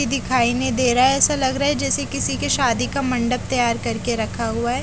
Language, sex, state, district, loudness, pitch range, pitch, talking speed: Hindi, female, Haryana, Charkhi Dadri, -20 LUFS, 240-265 Hz, 255 Hz, 275 wpm